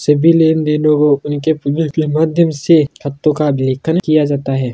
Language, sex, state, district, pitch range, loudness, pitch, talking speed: Hindi, male, Rajasthan, Churu, 145-160 Hz, -14 LUFS, 150 Hz, 190 wpm